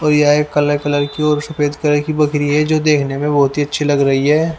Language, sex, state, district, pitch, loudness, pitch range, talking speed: Hindi, male, Haryana, Rohtak, 145 Hz, -15 LUFS, 145-150 Hz, 260 wpm